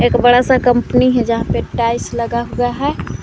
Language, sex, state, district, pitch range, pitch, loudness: Hindi, female, Uttar Pradesh, Lucknow, 235-250 Hz, 245 Hz, -15 LUFS